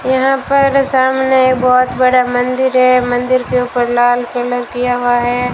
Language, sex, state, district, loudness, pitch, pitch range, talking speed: Hindi, female, Rajasthan, Bikaner, -13 LUFS, 250 Hz, 245-260 Hz, 160 wpm